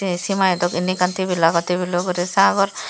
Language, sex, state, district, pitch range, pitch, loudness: Chakma, female, Tripura, Dhalai, 175-190 Hz, 180 Hz, -19 LUFS